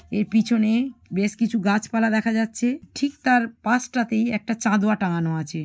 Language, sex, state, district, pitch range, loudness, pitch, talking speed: Bengali, female, West Bengal, Malda, 210-235 Hz, -22 LUFS, 225 Hz, 150 wpm